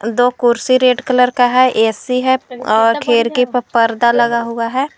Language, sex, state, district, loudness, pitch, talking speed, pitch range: Hindi, female, Uttar Pradesh, Lucknow, -14 LUFS, 245 Hz, 180 wpm, 235-250 Hz